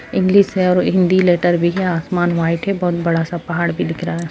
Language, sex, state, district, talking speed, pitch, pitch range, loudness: Hindi, female, Uttarakhand, Uttarkashi, 250 wpm, 175 Hz, 170-185 Hz, -16 LUFS